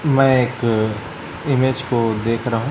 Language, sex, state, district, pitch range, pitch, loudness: Hindi, male, Chhattisgarh, Raipur, 115-135 Hz, 125 Hz, -19 LUFS